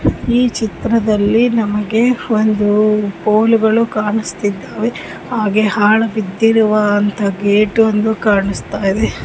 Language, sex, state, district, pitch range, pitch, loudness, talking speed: Kannada, female, Karnataka, Mysore, 205-225 Hz, 215 Hz, -14 LUFS, 90 wpm